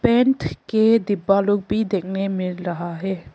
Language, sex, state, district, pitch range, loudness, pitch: Hindi, female, Arunachal Pradesh, Papum Pare, 180-220 Hz, -21 LUFS, 195 Hz